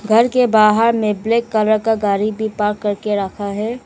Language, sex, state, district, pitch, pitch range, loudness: Hindi, female, Arunachal Pradesh, Lower Dibang Valley, 215 Hz, 210-225 Hz, -16 LUFS